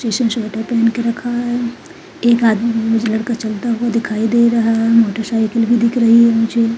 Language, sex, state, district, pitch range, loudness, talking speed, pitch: Hindi, female, Uttarakhand, Tehri Garhwal, 225-235 Hz, -15 LUFS, 175 wpm, 230 Hz